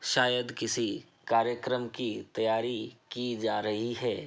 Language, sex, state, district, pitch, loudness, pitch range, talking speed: Hindi, male, Uttar Pradesh, Hamirpur, 120 Hz, -31 LUFS, 115-125 Hz, 125 wpm